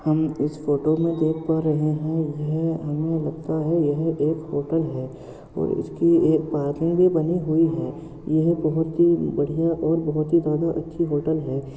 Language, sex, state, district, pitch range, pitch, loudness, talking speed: Hindi, male, Uttar Pradesh, Muzaffarnagar, 150-165 Hz, 155 Hz, -23 LUFS, 180 wpm